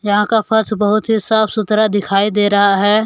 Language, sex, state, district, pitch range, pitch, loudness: Hindi, male, Jharkhand, Deoghar, 205-220 Hz, 210 Hz, -14 LUFS